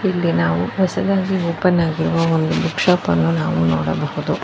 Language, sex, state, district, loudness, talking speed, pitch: Kannada, female, Karnataka, Bangalore, -18 LUFS, 150 wpm, 165 Hz